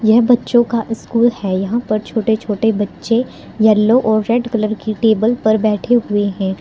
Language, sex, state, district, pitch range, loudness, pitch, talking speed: Hindi, female, Uttar Pradesh, Saharanpur, 215-235 Hz, -15 LUFS, 220 Hz, 180 wpm